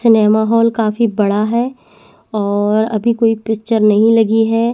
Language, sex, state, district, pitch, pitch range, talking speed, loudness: Hindi, female, Chhattisgarh, Bastar, 225 Hz, 215-230 Hz, 150 wpm, -14 LUFS